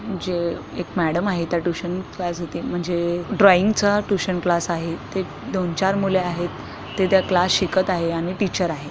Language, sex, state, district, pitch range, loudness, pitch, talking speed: Marathi, female, Maharashtra, Chandrapur, 170-190 Hz, -22 LUFS, 180 Hz, 175 wpm